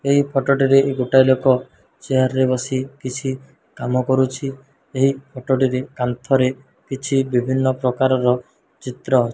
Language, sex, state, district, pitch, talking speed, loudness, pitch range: Odia, male, Odisha, Malkangiri, 130 Hz, 130 wpm, -19 LUFS, 130-135 Hz